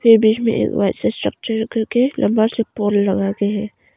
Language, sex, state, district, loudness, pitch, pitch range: Hindi, female, Arunachal Pradesh, Longding, -18 LUFS, 220 Hz, 205-230 Hz